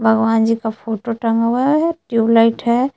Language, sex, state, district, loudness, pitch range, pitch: Hindi, female, Jharkhand, Palamu, -16 LUFS, 225-240 Hz, 230 Hz